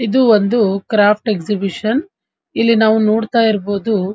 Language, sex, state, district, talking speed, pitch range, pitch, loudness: Kannada, female, Karnataka, Dharwad, 70 wpm, 205-230 Hz, 220 Hz, -15 LUFS